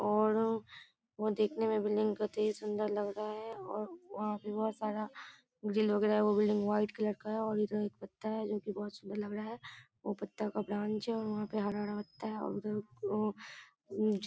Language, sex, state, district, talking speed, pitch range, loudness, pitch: Maithili, female, Bihar, Darbhanga, 225 wpm, 210-215 Hz, -36 LUFS, 210 Hz